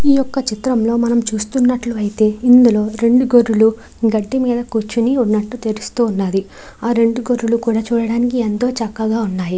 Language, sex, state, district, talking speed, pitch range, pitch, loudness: Telugu, female, Andhra Pradesh, Chittoor, 130 wpm, 220-245 Hz, 230 Hz, -16 LUFS